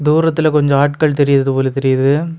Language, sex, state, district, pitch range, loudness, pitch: Tamil, male, Tamil Nadu, Kanyakumari, 135-155 Hz, -14 LUFS, 145 Hz